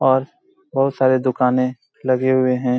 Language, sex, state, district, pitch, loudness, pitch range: Hindi, male, Jharkhand, Jamtara, 130 Hz, -19 LUFS, 125-135 Hz